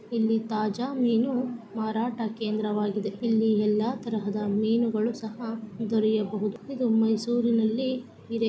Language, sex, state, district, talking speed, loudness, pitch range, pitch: Kannada, female, Karnataka, Mysore, 105 wpm, -27 LUFS, 215-235 Hz, 225 Hz